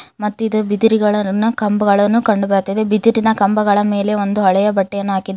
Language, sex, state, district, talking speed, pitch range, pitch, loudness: Kannada, female, Karnataka, Koppal, 145 wpm, 200-215 Hz, 210 Hz, -15 LUFS